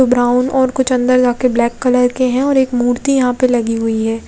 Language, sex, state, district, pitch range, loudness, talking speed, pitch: Hindi, female, Odisha, Khordha, 245-260 Hz, -14 LUFS, 265 wpm, 250 Hz